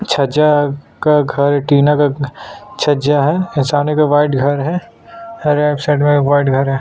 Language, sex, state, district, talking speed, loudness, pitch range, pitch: Hindi, male, Chhattisgarh, Sukma, 160 wpm, -14 LUFS, 140-150 Hz, 145 Hz